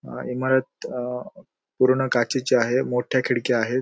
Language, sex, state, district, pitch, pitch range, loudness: Marathi, male, Goa, North and South Goa, 125 Hz, 125-130 Hz, -23 LUFS